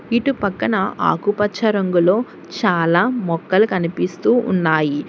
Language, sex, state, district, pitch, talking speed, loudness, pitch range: Telugu, female, Telangana, Hyderabad, 200 Hz, 95 wpm, -18 LUFS, 175-220 Hz